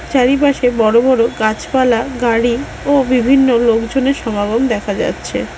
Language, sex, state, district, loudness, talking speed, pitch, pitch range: Bengali, female, West Bengal, Alipurduar, -14 LUFS, 120 wpm, 245 Hz, 230-265 Hz